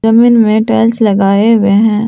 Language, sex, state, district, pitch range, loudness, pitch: Hindi, female, Jharkhand, Palamu, 210-230 Hz, -9 LUFS, 220 Hz